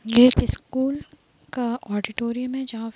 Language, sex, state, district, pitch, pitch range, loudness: Hindi, female, Uttar Pradesh, Deoria, 240 Hz, 225-255 Hz, -23 LUFS